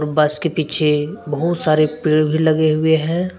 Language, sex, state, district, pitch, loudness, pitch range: Hindi, male, Jharkhand, Deoghar, 155 Hz, -17 LUFS, 150-160 Hz